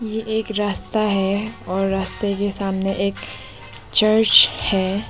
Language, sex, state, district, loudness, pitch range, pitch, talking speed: Hindi, female, Arunachal Pradesh, Papum Pare, -19 LUFS, 190-215 Hz, 200 Hz, 130 wpm